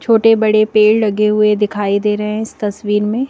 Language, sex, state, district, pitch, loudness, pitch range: Hindi, female, Madhya Pradesh, Bhopal, 210 Hz, -14 LUFS, 210-220 Hz